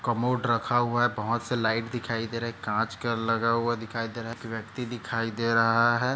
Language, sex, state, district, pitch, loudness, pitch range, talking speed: Hindi, male, Maharashtra, Nagpur, 115 Hz, -27 LUFS, 115-120 Hz, 235 wpm